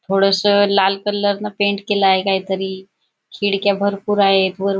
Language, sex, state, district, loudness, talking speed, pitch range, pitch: Marathi, female, Maharashtra, Chandrapur, -17 LUFS, 165 wpm, 195-205 Hz, 195 Hz